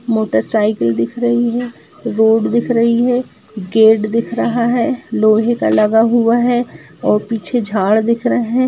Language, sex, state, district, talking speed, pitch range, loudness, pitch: Hindi, female, Jharkhand, Jamtara, 165 wpm, 215-240 Hz, -15 LUFS, 230 Hz